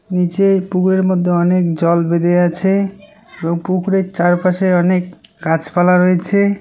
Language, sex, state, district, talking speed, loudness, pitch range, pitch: Bengali, male, West Bengal, Cooch Behar, 120 wpm, -15 LUFS, 175-190 Hz, 180 Hz